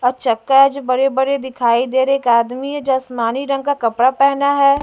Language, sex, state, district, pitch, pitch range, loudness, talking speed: Hindi, female, Delhi, New Delhi, 265 Hz, 250-275 Hz, -16 LUFS, 225 wpm